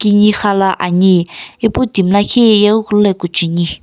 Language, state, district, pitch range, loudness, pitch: Sumi, Nagaland, Kohima, 180-210 Hz, -12 LUFS, 200 Hz